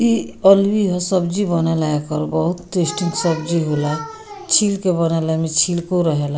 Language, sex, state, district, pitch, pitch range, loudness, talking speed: Bhojpuri, female, Bihar, Muzaffarpur, 170 Hz, 160-195 Hz, -18 LUFS, 150 wpm